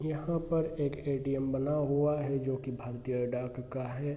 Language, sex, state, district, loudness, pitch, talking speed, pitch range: Hindi, male, Bihar, Araria, -33 LUFS, 140 Hz, 175 wpm, 130-150 Hz